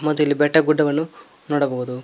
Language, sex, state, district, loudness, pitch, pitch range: Kannada, male, Karnataka, Koppal, -19 LUFS, 150 Hz, 145-155 Hz